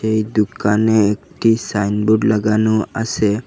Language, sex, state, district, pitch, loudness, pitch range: Bengali, male, Assam, Hailakandi, 110 Hz, -17 LUFS, 105-110 Hz